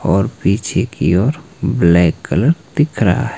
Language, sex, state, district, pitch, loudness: Hindi, male, Himachal Pradesh, Shimla, 135 Hz, -15 LUFS